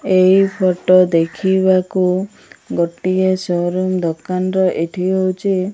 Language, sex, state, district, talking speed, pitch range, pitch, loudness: Odia, female, Odisha, Malkangiri, 95 wpm, 180-190 Hz, 185 Hz, -16 LUFS